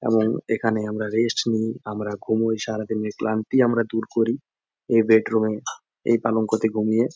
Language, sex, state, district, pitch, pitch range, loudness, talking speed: Bengali, male, West Bengal, Jhargram, 110 Hz, 110-115 Hz, -23 LUFS, 150 wpm